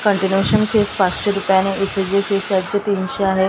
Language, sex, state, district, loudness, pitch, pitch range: Marathi, female, Maharashtra, Gondia, -17 LUFS, 195 Hz, 190-205 Hz